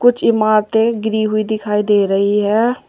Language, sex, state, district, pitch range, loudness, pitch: Hindi, female, Uttar Pradesh, Saharanpur, 210-225 Hz, -15 LUFS, 215 Hz